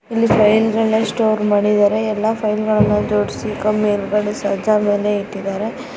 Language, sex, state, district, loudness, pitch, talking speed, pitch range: Kannada, female, Karnataka, Bijapur, -17 LUFS, 210 Hz, 130 wpm, 205-220 Hz